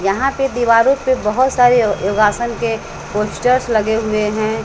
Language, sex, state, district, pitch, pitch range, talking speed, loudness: Hindi, female, Bihar, West Champaran, 230 Hz, 215-250 Hz, 165 wpm, -15 LUFS